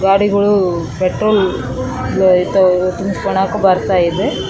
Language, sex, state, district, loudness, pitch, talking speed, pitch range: Kannada, female, Karnataka, Raichur, -14 LUFS, 185 Hz, 105 wpm, 180-195 Hz